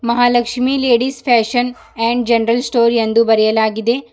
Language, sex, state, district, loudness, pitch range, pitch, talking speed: Kannada, female, Karnataka, Bidar, -15 LUFS, 230-245 Hz, 235 Hz, 115 wpm